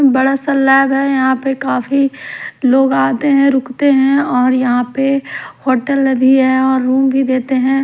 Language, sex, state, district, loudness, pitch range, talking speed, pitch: Hindi, female, Odisha, Khordha, -13 LUFS, 260-275 Hz, 175 wpm, 265 Hz